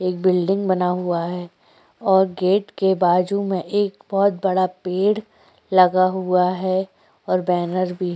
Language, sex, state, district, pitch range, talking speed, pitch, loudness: Hindi, female, Chhattisgarh, Korba, 180-195 Hz, 170 wpm, 185 Hz, -20 LUFS